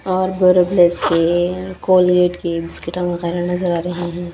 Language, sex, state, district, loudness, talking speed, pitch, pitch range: Hindi, female, Haryana, Rohtak, -16 LUFS, 150 wpm, 180 Hz, 175-185 Hz